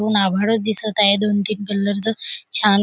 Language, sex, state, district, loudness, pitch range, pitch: Marathi, female, Maharashtra, Chandrapur, -17 LUFS, 200-215 Hz, 210 Hz